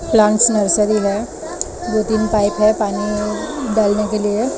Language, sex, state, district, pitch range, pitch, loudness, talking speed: Hindi, female, Maharashtra, Mumbai Suburban, 210-220 Hz, 215 Hz, -16 LUFS, 145 wpm